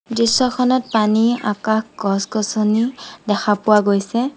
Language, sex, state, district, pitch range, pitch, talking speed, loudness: Assamese, female, Assam, Sonitpur, 210-240 Hz, 220 Hz, 110 wpm, -18 LUFS